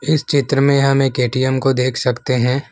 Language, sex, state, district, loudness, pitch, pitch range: Hindi, male, Assam, Kamrup Metropolitan, -16 LUFS, 135 Hz, 125-140 Hz